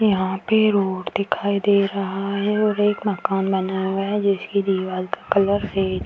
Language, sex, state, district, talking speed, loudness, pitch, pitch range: Hindi, female, Uttar Pradesh, Deoria, 190 wpm, -21 LUFS, 200 Hz, 190-205 Hz